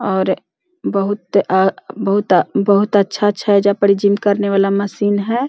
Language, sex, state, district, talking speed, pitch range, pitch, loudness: Hindi, female, Bihar, Jahanabad, 155 wpm, 195-205 Hz, 200 Hz, -16 LUFS